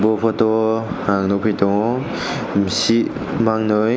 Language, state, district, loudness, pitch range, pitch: Kokborok, Tripura, West Tripura, -18 LUFS, 100-115 Hz, 110 Hz